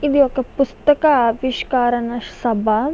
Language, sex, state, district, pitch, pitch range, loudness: Telugu, female, Andhra Pradesh, Visakhapatnam, 255 Hz, 240-285 Hz, -18 LUFS